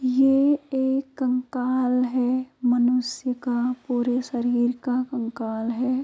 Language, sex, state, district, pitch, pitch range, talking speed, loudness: Hindi, female, Uttar Pradesh, Jyotiba Phule Nagar, 250 Hz, 245-260 Hz, 110 wpm, -24 LUFS